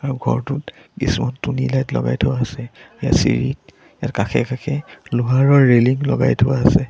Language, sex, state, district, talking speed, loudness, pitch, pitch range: Assamese, male, Assam, Sonitpur, 150 wpm, -18 LUFS, 130 Hz, 120-140 Hz